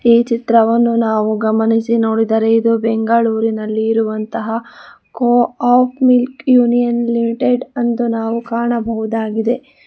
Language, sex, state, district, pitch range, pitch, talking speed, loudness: Kannada, female, Karnataka, Bangalore, 225-240 Hz, 230 Hz, 90 wpm, -15 LUFS